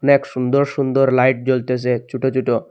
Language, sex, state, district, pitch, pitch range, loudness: Bengali, male, Assam, Hailakandi, 130 Hz, 125-135 Hz, -18 LUFS